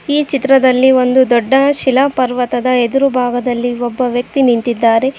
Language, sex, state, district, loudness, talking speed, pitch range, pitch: Kannada, female, Karnataka, Koppal, -13 LUFS, 125 wpm, 245-270 Hz, 255 Hz